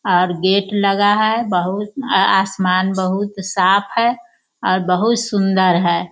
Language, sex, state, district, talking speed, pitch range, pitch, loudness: Hindi, female, Bihar, Sitamarhi, 125 wpm, 185-205 Hz, 195 Hz, -16 LUFS